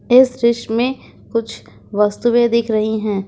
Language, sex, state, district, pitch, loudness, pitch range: Hindi, female, Jharkhand, Ranchi, 230 Hz, -17 LUFS, 215-240 Hz